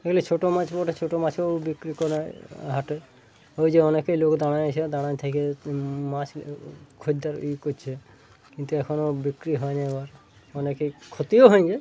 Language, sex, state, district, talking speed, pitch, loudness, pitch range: Bengali, male, West Bengal, Purulia, 145 wpm, 150 Hz, -24 LUFS, 140-155 Hz